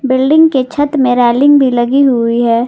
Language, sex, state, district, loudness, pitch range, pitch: Hindi, female, Jharkhand, Garhwa, -10 LUFS, 240-280 Hz, 260 Hz